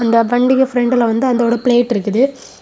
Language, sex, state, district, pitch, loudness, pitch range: Tamil, female, Tamil Nadu, Kanyakumari, 240 Hz, -14 LUFS, 235-250 Hz